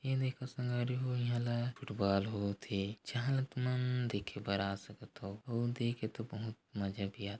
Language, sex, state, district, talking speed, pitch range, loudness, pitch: Chhattisgarhi, male, Chhattisgarh, Korba, 195 wpm, 100-125 Hz, -38 LUFS, 115 Hz